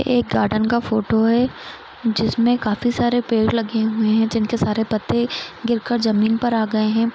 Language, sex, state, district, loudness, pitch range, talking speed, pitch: Hindi, female, Chhattisgarh, Rajnandgaon, -19 LUFS, 220-235 Hz, 185 wpm, 225 Hz